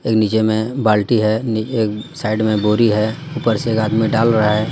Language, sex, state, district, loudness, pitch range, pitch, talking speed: Hindi, male, Jharkhand, Deoghar, -17 LUFS, 110-115 Hz, 110 Hz, 230 wpm